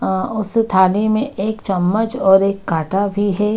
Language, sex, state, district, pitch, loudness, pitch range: Hindi, female, Bihar, Gaya, 200 Hz, -17 LUFS, 190-220 Hz